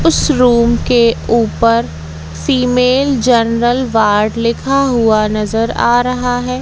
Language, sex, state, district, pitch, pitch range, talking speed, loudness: Hindi, female, Madhya Pradesh, Katni, 235 Hz, 220-250 Hz, 120 wpm, -13 LUFS